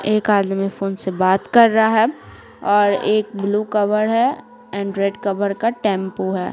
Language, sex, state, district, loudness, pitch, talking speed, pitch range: Hindi, female, Bihar, Patna, -18 LUFS, 205 Hz, 175 wpm, 195-220 Hz